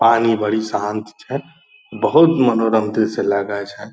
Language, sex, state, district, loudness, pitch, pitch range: Angika, male, Bihar, Purnia, -18 LUFS, 110 Hz, 105-130 Hz